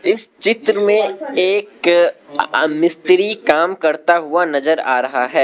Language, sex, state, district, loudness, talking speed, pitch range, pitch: Hindi, male, Arunachal Pradesh, Lower Dibang Valley, -15 LUFS, 145 wpm, 160-205 Hz, 175 Hz